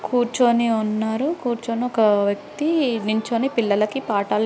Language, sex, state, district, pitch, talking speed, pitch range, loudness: Telugu, female, Andhra Pradesh, Guntur, 230 Hz, 110 wpm, 215-250 Hz, -21 LUFS